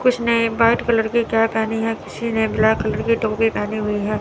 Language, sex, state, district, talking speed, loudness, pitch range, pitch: Hindi, female, Chandigarh, Chandigarh, 240 wpm, -19 LUFS, 220-230 Hz, 225 Hz